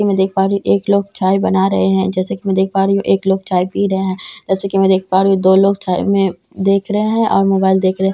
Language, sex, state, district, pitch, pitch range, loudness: Hindi, female, Bihar, Katihar, 195 Hz, 190-195 Hz, -15 LUFS